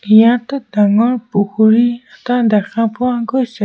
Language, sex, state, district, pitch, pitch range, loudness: Assamese, male, Assam, Sonitpur, 230 Hz, 215-245 Hz, -14 LUFS